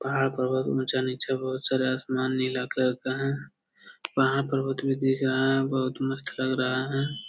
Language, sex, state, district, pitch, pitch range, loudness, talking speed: Hindi, male, Bihar, Jamui, 130 Hz, 130-135 Hz, -27 LUFS, 190 wpm